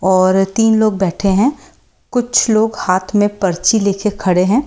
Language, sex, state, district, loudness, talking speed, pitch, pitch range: Hindi, female, Delhi, New Delhi, -14 LUFS, 165 wpm, 205 Hz, 190-220 Hz